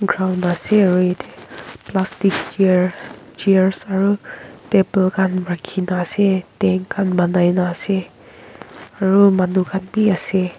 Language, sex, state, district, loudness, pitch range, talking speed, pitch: Nagamese, female, Nagaland, Kohima, -18 LUFS, 180-195 Hz, 125 wpm, 190 Hz